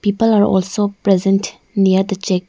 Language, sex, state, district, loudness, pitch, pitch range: English, female, Arunachal Pradesh, Lower Dibang Valley, -16 LUFS, 195 Hz, 190-205 Hz